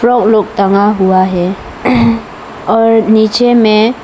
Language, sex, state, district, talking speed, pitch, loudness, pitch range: Hindi, female, Arunachal Pradesh, Lower Dibang Valley, 120 wpm, 220 Hz, -10 LUFS, 200-230 Hz